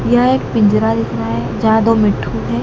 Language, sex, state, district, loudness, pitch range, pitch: Hindi, male, Madhya Pradesh, Dhar, -14 LUFS, 115-130 Hz, 120 Hz